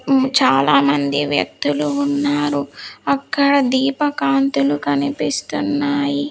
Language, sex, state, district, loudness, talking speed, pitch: Telugu, female, Andhra Pradesh, Sri Satya Sai, -17 LUFS, 75 wpm, 145 Hz